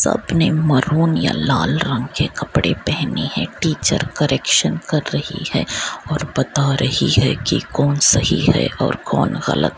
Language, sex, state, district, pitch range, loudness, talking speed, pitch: Hindi, female, Bihar, Muzaffarpur, 130-155 Hz, -17 LUFS, 160 wpm, 145 Hz